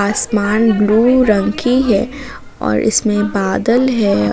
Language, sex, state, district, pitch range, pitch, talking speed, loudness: Hindi, female, Jharkhand, Palamu, 205-245 Hz, 215 Hz, 125 wpm, -14 LUFS